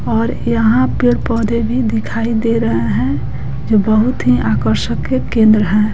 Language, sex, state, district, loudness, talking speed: Hindi, female, Bihar, West Champaran, -15 LUFS, 160 wpm